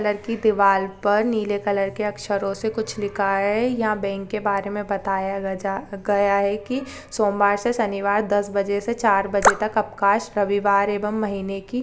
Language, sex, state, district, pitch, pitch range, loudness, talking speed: Hindi, female, Bihar, Saharsa, 205 Hz, 200-215 Hz, -22 LUFS, 195 wpm